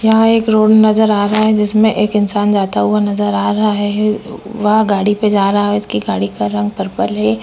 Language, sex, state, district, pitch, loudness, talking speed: Hindi, female, Chhattisgarh, Korba, 210 Hz, -13 LUFS, 225 wpm